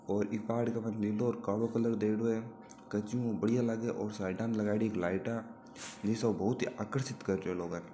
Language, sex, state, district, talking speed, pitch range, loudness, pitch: Marwari, male, Rajasthan, Nagaur, 220 wpm, 105-115 Hz, -34 LUFS, 110 Hz